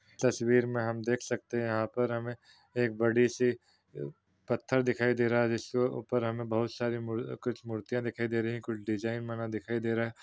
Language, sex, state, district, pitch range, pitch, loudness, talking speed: Hindi, male, Chhattisgarh, Rajnandgaon, 115-120 Hz, 115 Hz, -32 LUFS, 195 wpm